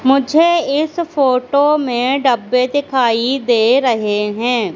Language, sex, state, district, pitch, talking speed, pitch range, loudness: Hindi, female, Madhya Pradesh, Katni, 260 Hz, 115 wpm, 240-285 Hz, -15 LUFS